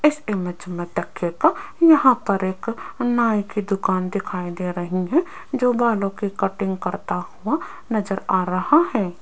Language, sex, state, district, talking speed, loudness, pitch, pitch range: Hindi, female, Rajasthan, Jaipur, 150 wpm, -22 LUFS, 200 Hz, 185-240 Hz